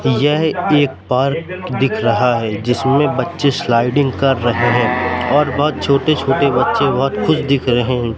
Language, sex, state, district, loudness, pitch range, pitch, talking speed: Hindi, male, Madhya Pradesh, Katni, -15 LUFS, 120-145 Hz, 135 Hz, 160 wpm